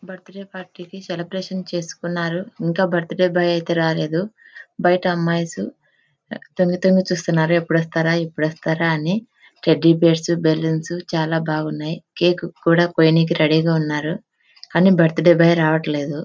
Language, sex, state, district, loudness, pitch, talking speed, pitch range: Telugu, female, Andhra Pradesh, Anantapur, -19 LUFS, 170 Hz, 120 wpm, 160-180 Hz